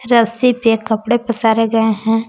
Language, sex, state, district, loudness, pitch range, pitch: Hindi, female, Jharkhand, Palamu, -15 LUFS, 225-235 Hz, 225 Hz